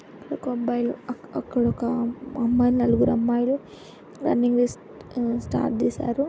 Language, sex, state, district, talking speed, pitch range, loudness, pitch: Telugu, female, Andhra Pradesh, Anantapur, 105 wpm, 240-250 Hz, -24 LUFS, 245 Hz